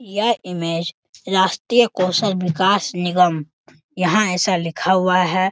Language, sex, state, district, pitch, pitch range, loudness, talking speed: Hindi, male, Bihar, Sitamarhi, 185 Hz, 175-195 Hz, -18 LUFS, 120 wpm